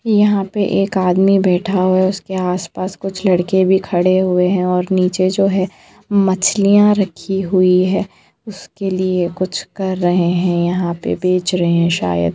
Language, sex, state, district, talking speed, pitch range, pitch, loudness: Hindi, female, Jharkhand, Sahebganj, 175 wpm, 180-195 Hz, 185 Hz, -16 LUFS